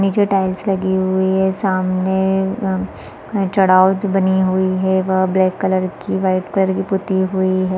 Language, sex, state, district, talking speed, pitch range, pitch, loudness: Hindi, female, Chhattisgarh, Balrampur, 170 wpm, 185-190 Hz, 190 Hz, -17 LUFS